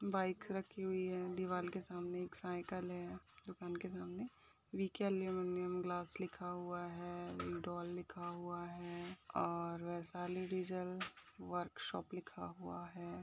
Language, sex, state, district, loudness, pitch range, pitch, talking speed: Hindi, female, Bihar, East Champaran, -44 LUFS, 175-185 Hz, 180 Hz, 135 wpm